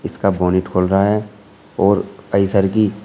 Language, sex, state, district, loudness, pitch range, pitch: Hindi, male, Uttar Pradesh, Shamli, -17 LUFS, 95-105 Hz, 100 Hz